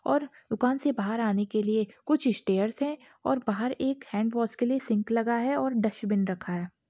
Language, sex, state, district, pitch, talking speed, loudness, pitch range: Hindi, female, Chhattisgarh, Raigarh, 230 Hz, 210 wpm, -28 LUFS, 210-265 Hz